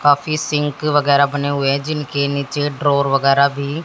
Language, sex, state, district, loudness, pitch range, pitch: Hindi, female, Haryana, Jhajjar, -17 LUFS, 140-145 Hz, 145 Hz